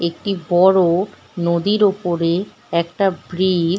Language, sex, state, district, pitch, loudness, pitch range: Bengali, female, West Bengal, Dakshin Dinajpur, 180 Hz, -18 LUFS, 170-190 Hz